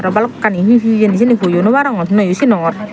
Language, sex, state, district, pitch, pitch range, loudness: Chakma, female, Tripura, Unakoti, 215 Hz, 185-235 Hz, -12 LUFS